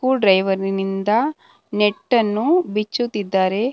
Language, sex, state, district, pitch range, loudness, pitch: Kannada, female, Karnataka, Bangalore, 195-240 Hz, -19 LUFS, 210 Hz